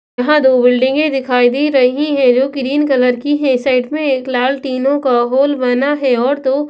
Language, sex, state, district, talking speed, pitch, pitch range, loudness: Hindi, female, Maharashtra, Washim, 205 wpm, 265 Hz, 250-285 Hz, -13 LUFS